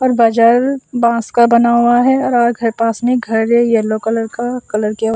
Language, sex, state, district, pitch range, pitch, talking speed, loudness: Hindi, male, Assam, Sonitpur, 225-240 Hz, 235 Hz, 210 wpm, -13 LUFS